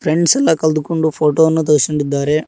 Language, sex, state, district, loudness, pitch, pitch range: Kannada, male, Karnataka, Koppal, -14 LUFS, 155 Hz, 150-160 Hz